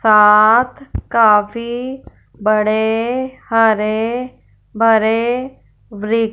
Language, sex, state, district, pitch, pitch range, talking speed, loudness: Hindi, female, Punjab, Fazilka, 225 Hz, 215-245 Hz, 55 wpm, -15 LUFS